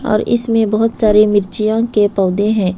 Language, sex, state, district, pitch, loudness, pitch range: Hindi, female, Uttar Pradesh, Budaun, 215 Hz, -14 LUFS, 205-225 Hz